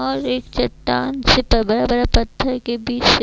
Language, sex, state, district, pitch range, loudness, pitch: Hindi, female, Chhattisgarh, Raipur, 225-255 Hz, -18 LUFS, 245 Hz